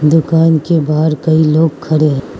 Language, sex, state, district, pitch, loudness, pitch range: Hindi, female, Mizoram, Aizawl, 155 Hz, -12 LUFS, 150-160 Hz